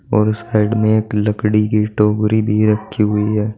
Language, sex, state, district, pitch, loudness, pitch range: Hindi, male, Uttar Pradesh, Saharanpur, 105 Hz, -16 LUFS, 105-110 Hz